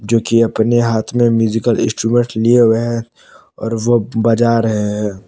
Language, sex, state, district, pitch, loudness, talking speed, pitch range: Hindi, male, Jharkhand, Palamu, 115 Hz, -14 LUFS, 170 wpm, 110-120 Hz